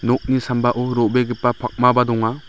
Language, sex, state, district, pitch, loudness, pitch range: Garo, male, Meghalaya, West Garo Hills, 125 Hz, -18 LUFS, 120-125 Hz